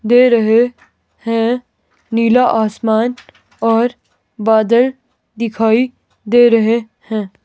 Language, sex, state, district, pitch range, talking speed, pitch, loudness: Hindi, female, Himachal Pradesh, Shimla, 220-245 Hz, 90 wpm, 230 Hz, -14 LUFS